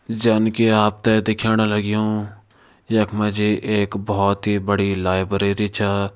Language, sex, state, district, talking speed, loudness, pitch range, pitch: Kumaoni, male, Uttarakhand, Tehri Garhwal, 115 wpm, -19 LUFS, 100-110 Hz, 105 Hz